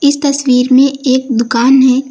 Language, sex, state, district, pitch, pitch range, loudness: Hindi, female, Uttar Pradesh, Lucknow, 260 Hz, 255-275 Hz, -10 LUFS